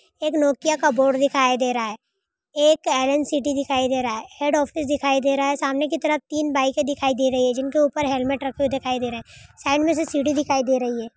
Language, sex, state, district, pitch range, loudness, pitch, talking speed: Hindi, female, Uttar Pradesh, Budaun, 265-295 Hz, -21 LUFS, 280 Hz, 250 wpm